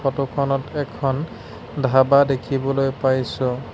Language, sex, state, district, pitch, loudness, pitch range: Assamese, male, Assam, Sonitpur, 135 Hz, -20 LUFS, 130-140 Hz